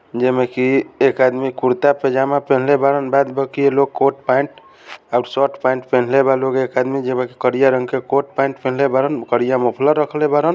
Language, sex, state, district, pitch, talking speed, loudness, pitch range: Bhojpuri, male, Bihar, Saran, 135 Hz, 180 wpm, -17 LUFS, 130-140 Hz